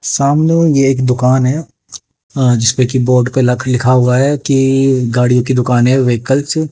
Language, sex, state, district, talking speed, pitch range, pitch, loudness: Hindi, male, Haryana, Jhajjar, 170 wpm, 125-135 Hz, 130 Hz, -12 LUFS